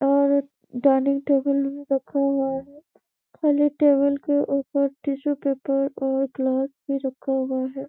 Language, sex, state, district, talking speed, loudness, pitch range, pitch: Hindi, female, Chhattisgarh, Bastar, 150 wpm, -23 LUFS, 270-280 Hz, 275 Hz